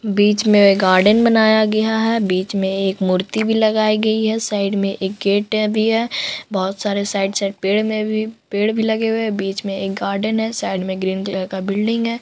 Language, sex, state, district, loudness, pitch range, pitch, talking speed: Hindi, female, Bihar, Purnia, -18 LUFS, 195-220 Hz, 205 Hz, 220 wpm